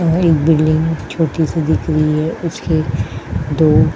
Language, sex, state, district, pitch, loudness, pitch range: Hindi, female, Uttar Pradesh, Jyotiba Phule Nagar, 155 Hz, -16 LUFS, 150-160 Hz